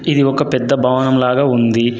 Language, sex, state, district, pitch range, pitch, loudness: Telugu, male, Telangana, Adilabad, 125-140 Hz, 130 Hz, -14 LUFS